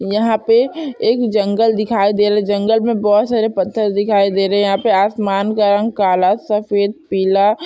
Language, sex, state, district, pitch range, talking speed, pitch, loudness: Hindi, female, Chhattisgarh, Bilaspur, 200-225 Hz, 190 wpm, 210 Hz, -15 LUFS